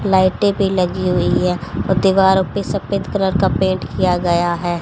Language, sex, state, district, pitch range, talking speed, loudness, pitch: Hindi, female, Haryana, Jhajjar, 180-190 Hz, 185 wpm, -17 LUFS, 190 Hz